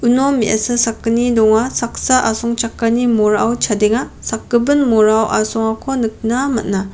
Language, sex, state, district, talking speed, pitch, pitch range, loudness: Garo, female, Meghalaya, West Garo Hills, 110 wpm, 230 Hz, 220-245 Hz, -15 LUFS